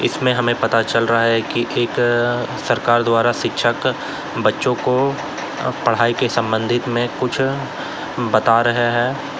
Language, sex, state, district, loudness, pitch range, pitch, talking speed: Hindi, male, Uttar Pradesh, Lalitpur, -18 LUFS, 115-125 Hz, 120 Hz, 140 wpm